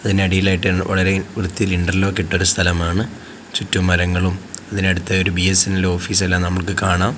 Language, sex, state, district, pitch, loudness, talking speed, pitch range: Malayalam, male, Kerala, Kozhikode, 95 Hz, -18 LUFS, 135 wpm, 90-95 Hz